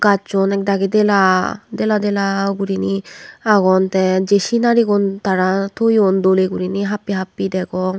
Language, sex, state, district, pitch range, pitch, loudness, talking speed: Chakma, female, Tripura, West Tripura, 190-205 Hz, 195 Hz, -16 LUFS, 130 wpm